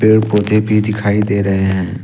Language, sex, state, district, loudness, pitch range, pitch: Hindi, male, Jharkhand, Ranchi, -14 LUFS, 100-105 Hz, 105 Hz